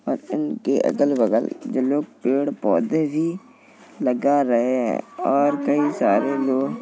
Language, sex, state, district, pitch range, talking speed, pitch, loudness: Hindi, male, Uttar Pradesh, Jalaun, 130-150 Hz, 130 wpm, 140 Hz, -21 LUFS